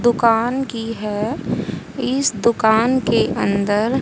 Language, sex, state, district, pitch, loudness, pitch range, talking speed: Hindi, female, Haryana, Charkhi Dadri, 230 Hz, -19 LUFS, 220-250 Hz, 105 wpm